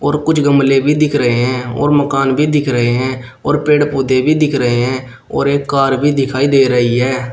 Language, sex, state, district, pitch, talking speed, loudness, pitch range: Hindi, male, Uttar Pradesh, Shamli, 135 Hz, 230 wpm, -13 LUFS, 130-145 Hz